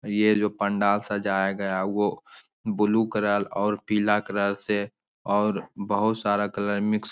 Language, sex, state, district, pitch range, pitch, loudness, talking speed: Hindi, male, Bihar, Jamui, 100-105 Hz, 105 Hz, -25 LUFS, 160 wpm